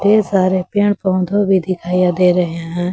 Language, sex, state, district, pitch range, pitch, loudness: Hindi, female, Jharkhand, Garhwa, 180-200 Hz, 185 Hz, -15 LUFS